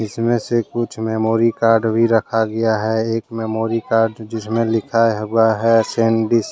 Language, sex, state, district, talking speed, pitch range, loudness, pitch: Hindi, male, Jharkhand, Deoghar, 165 wpm, 110-115 Hz, -18 LUFS, 115 Hz